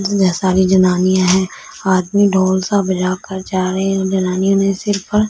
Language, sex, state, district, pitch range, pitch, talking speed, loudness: Hindi, female, Punjab, Fazilka, 185-195 Hz, 190 Hz, 170 wpm, -15 LUFS